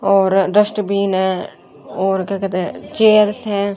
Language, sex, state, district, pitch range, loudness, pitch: Hindi, female, Haryana, Jhajjar, 190-210 Hz, -16 LUFS, 195 Hz